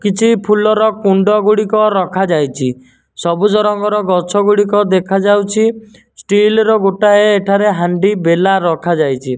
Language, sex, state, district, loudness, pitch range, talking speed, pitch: Odia, male, Odisha, Nuapada, -12 LUFS, 180-210 Hz, 100 wpm, 205 Hz